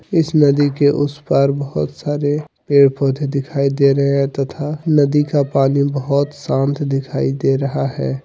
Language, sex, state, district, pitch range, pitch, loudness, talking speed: Hindi, male, Jharkhand, Deoghar, 135-145 Hz, 140 Hz, -17 LUFS, 165 wpm